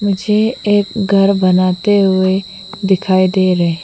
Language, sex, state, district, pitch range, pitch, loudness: Hindi, female, Mizoram, Aizawl, 185-205 Hz, 195 Hz, -13 LUFS